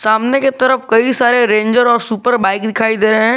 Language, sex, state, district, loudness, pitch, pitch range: Hindi, male, Jharkhand, Garhwa, -13 LUFS, 230 Hz, 220-245 Hz